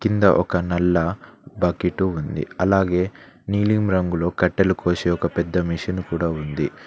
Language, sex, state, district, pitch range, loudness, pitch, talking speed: Telugu, male, Telangana, Mahabubabad, 85-95 Hz, -21 LUFS, 90 Hz, 130 wpm